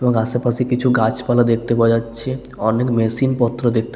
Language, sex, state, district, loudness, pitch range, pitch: Bengali, male, West Bengal, Paschim Medinipur, -18 LUFS, 115-125 Hz, 120 Hz